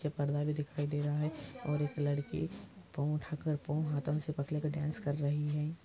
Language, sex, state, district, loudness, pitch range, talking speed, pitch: Hindi, male, Andhra Pradesh, Anantapur, -36 LUFS, 145-150 Hz, 205 wpm, 150 Hz